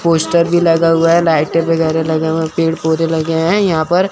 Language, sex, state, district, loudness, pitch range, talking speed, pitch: Hindi, male, Chandigarh, Chandigarh, -13 LUFS, 160-170 Hz, 235 wpm, 165 Hz